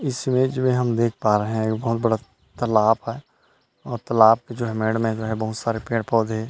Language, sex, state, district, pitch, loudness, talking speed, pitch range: Hindi, male, Chhattisgarh, Rajnandgaon, 115 Hz, -22 LUFS, 230 wpm, 110-120 Hz